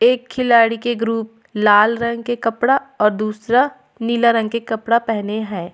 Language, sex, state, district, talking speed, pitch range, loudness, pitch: Surgujia, female, Chhattisgarh, Sarguja, 165 wpm, 220-240 Hz, -17 LUFS, 230 Hz